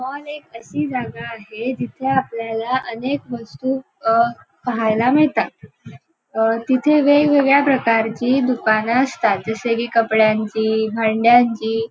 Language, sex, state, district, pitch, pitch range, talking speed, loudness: Marathi, female, Goa, North and South Goa, 240 Hz, 225-265 Hz, 110 wpm, -18 LUFS